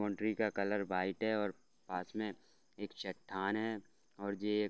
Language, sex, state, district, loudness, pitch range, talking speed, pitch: Hindi, male, Bihar, Gopalganj, -39 LUFS, 95-110 Hz, 165 wpm, 105 Hz